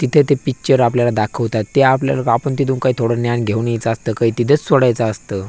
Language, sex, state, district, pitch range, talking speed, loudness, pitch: Marathi, male, Maharashtra, Aurangabad, 115-135 Hz, 210 wpm, -16 LUFS, 120 Hz